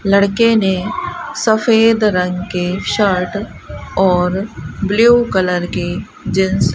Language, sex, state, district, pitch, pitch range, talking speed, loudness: Hindi, female, Rajasthan, Bikaner, 195 Hz, 180-220 Hz, 105 wpm, -15 LUFS